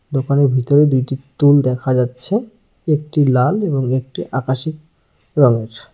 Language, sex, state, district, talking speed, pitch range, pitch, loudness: Bengali, male, West Bengal, Cooch Behar, 120 wpm, 130-150 Hz, 140 Hz, -17 LUFS